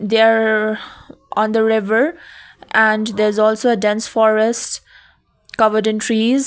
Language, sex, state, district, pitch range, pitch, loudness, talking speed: English, female, Sikkim, Gangtok, 215-225 Hz, 220 Hz, -16 LUFS, 130 wpm